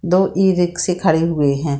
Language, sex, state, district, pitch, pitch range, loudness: Hindi, female, Bihar, Saran, 175 Hz, 160-185 Hz, -17 LUFS